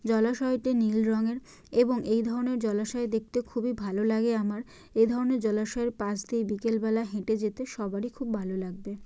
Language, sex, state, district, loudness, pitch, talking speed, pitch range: Bengali, female, West Bengal, Jalpaiguri, -29 LUFS, 225 Hz, 165 wpm, 215-240 Hz